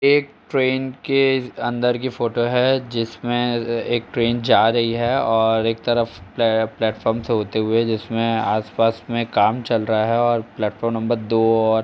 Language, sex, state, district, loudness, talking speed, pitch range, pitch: Hindi, male, Uttar Pradesh, Etah, -20 LUFS, 165 wpm, 115-120 Hz, 115 Hz